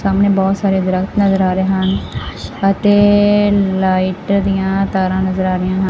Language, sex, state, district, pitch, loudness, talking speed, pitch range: Punjabi, female, Punjab, Fazilka, 190 Hz, -14 LUFS, 160 wpm, 190-200 Hz